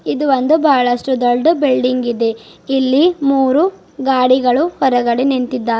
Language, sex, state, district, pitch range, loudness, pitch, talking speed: Kannada, female, Karnataka, Bidar, 250-275 Hz, -14 LUFS, 260 Hz, 105 wpm